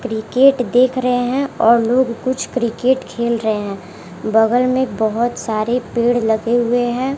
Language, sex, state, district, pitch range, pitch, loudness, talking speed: Hindi, female, Bihar, West Champaran, 225-255 Hz, 240 Hz, -17 LUFS, 160 wpm